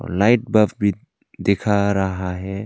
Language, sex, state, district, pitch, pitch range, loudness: Hindi, male, Arunachal Pradesh, Longding, 100 Hz, 95-110 Hz, -19 LUFS